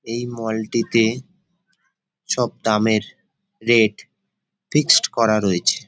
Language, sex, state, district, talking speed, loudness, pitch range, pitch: Bengali, male, West Bengal, Dakshin Dinajpur, 90 wpm, -19 LUFS, 110-130 Hz, 115 Hz